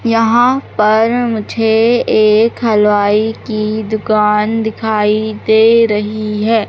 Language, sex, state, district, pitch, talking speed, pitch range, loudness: Hindi, female, Madhya Pradesh, Katni, 220 Hz, 100 wpm, 215-225 Hz, -12 LUFS